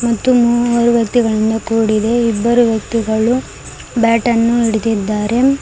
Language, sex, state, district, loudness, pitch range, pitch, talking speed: Kannada, female, Karnataka, Koppal, -14 LUFS, 220-240 Hz, 230 Hz, 95 wpm